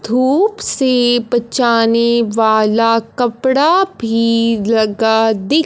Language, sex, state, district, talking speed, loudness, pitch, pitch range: Hindi, female, Punjab, Fazilka, 85 wpm, -14 LUFS, 230 Hz, 225-255 Hz